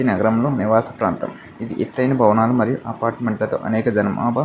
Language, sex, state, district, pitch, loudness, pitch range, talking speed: Telugu, male, Andhra Pradesh, Visakhapatnam, 115 Hz, -19 LUFS, 110-130 Hz, 175 wpm